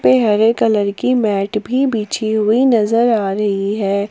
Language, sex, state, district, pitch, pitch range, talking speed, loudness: Hindi, female, Jharkhand, Palamu, 215 Hz, 200-230 Hz, 175 wpm, -15 LUFS